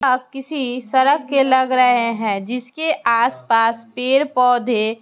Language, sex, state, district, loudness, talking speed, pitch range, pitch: Hindi, male, Bihar, Muzaffarpur, -17 LUFS, 130 wpm, 230-270 Hz, 250 Hz